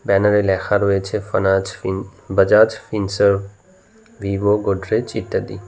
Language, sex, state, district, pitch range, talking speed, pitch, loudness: Bengali, male, West Bengal, Cooch Behar, 95-105 Hz, 105 wpm, 100 Hz, -18 LUFS